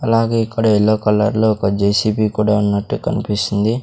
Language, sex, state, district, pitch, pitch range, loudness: Telugu, male, Andhra Pradesh, Sri Satya Sai, 110 Hz, 105-110 Hz, -16 LUFS